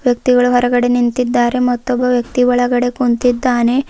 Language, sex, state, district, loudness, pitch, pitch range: Kannada, female, Karnataka, Bidar, -14 LUFS, 245 Hz, 245-250 Hz